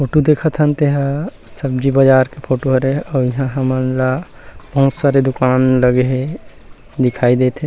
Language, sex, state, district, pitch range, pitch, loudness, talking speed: Chhattisgarhi, male, Chhattisgarh, Rajnandgaon, 130-140 Hz, 135 Hz, -15 LUFS, 170 wpm